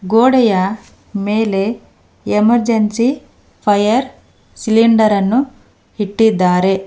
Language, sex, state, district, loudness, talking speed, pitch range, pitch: Kannada, female, Karnataka, Bangalore, -14 LUFS, 60 wpm, 200-230 Hz, 220 Hz